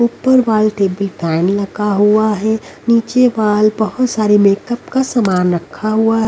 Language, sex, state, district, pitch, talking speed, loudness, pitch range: Hindi, female, Haryana, Rohtak, 215 Hz, 160 wpm, -14 LUFS, 200-235 Hz